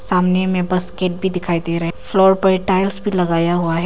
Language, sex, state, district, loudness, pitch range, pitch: Hindi, female, Arunachal Pradesh, Papum Pare, -16 LUFS, 175-190 Hz, 180 Hz